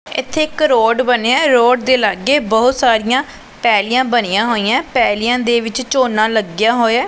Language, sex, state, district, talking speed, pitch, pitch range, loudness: Punjabi, female, Punjab, Pathankot, 150 wpm, 240 Hz, 225-260 Hz, -14 LUFS